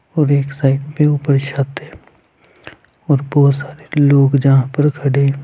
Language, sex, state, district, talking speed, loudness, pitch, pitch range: Hindi, male, Punjab, Fazilka, 165 wpm, -15 LUFS, 140 Hz, 135-145 Hz